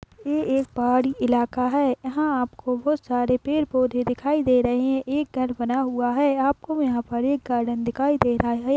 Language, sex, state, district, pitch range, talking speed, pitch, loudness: Hindi, female, Rajasthan, Nagaur, 245-280 Hz, 200 wpm, 255 Hz, -23 LUFS